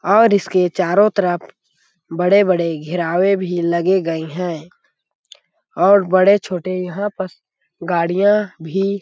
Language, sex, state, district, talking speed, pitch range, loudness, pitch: Hindi, male, Chhattisgarh, Sarguja, 105 wpm, 175-195 Hz, -17 LUFS, 185 Hz